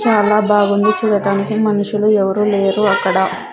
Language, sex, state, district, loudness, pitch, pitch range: Telugu, female, Andhra Pradesh, Sri Satya Sai, -15 LUFS, 205 Hz, 200-215 Hz